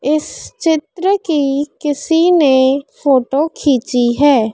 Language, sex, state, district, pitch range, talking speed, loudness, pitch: Hindi, female, Madhya Pradesh, Dhar, 270-320 Hz, 105 wpm, -14 LUFS, 290 Hz